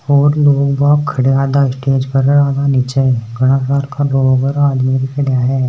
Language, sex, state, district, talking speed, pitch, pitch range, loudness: Hindi, male, Rajasthan, Nagaur, 170 wpm, 135 Hz, 130-140 Hz, -13 LUFS